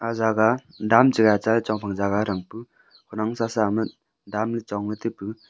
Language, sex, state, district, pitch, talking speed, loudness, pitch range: Wancho, male, Arunachal Pradesh, Longding, 110 Hz, 195 wpm, -23 LUFS, 105-115 Hz